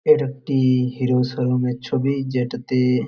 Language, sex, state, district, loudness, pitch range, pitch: Bengali, male, West Bengal, Jalpaiguri, -21 LUFS, 125-135 Hz, 125 Hz